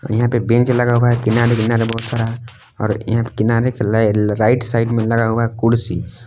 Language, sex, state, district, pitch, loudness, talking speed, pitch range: Hindi, male, Jharkhand, Palamu, 115 Hz, -17 LUFS, 190 wpm, 110-120 Hz